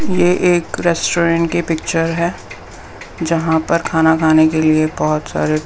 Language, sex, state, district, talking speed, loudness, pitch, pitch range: Hindi, female, Bihar, West Champaran, 150 wpm, -15 LUFS, 165 Hz, 155-170 Hz